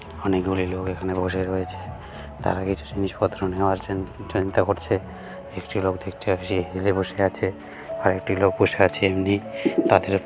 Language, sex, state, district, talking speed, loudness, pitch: Bengali, male, West Bengal, Malda, 170 wpm, -24 LUFS, 95 Hz